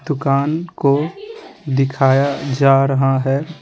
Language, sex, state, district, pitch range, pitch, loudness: Hindi, male, Bihar, Patna, 135-155 Hz, 140 Hz, -17 LUFS